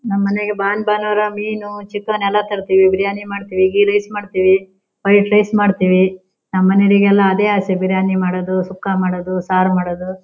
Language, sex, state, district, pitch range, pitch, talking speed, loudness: Kannada, female, Karnataka, Shimoga, 185-205 Hz, 195 Hz, 160 wpm, -16 LUFS